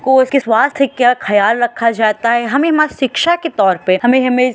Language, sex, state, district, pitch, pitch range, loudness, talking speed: Hindi, female, Uttar Pradesh, Varanasi, 250 Hz, 230-275 Hz, -13 LUFS, 210 wpm